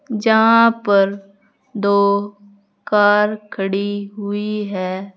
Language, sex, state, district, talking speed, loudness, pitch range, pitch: Hindi, female, Uttar Pradesh, Saharanpur, 80 wpm, -17 LUFS, 200-210 Hz, 205 Hz